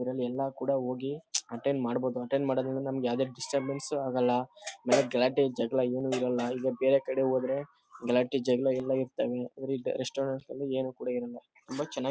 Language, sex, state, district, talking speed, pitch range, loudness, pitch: Kannada, male, Karnataka, Chamarajanagar, 150 wpm, 125-135 Hz, -31 LUFS, 130 Hz